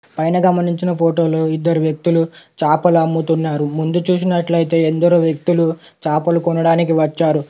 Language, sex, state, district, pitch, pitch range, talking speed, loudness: Telugu, male, Telangana, Komaram Bheem, 165 Hz, 160-170 Hz, 130 wpm, -16 LUFS